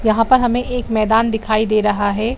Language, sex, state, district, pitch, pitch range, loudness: Hindi, female, Bihar, Saran, 225 Hz, 215-240 Hz, -16 LUFS